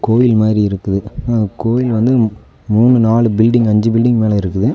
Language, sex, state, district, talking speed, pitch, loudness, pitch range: Tamil, male, Tamil Nadu, Nilgiris, 165 wpm, 110 Hz, -13 LUFS, 105-120 Hz